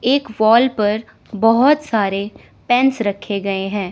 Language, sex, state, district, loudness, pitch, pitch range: Hindi, female, Chandigarh, Chandigarh, -17 LUFS, 220 Hz, 200-245 Hz